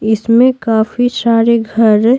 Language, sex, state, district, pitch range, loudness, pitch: Hindi, female, Bihar, Patna, 220-240 Hz, -11 LUFS, 230 Hz